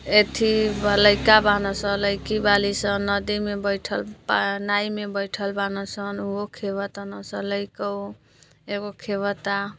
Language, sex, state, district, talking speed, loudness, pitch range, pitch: Bhojpuri, female, Uttar Pradesh, Deoria, 140 wpm, -23 LUFS, 200-205 Hz, 200 Hz